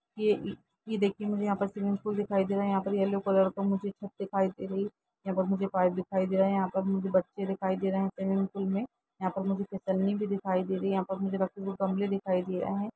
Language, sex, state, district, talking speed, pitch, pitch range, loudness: Hindi, female, Uttar Pradesh, Jalaun, 280 wpm, 195 Hz, 190-200 Hz, -30 LUFS